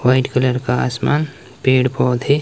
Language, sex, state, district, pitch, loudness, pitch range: Hindi, male, Himachal Pradesh, Shimla, 130 Hz, -17 LUFS, 125-135 Hz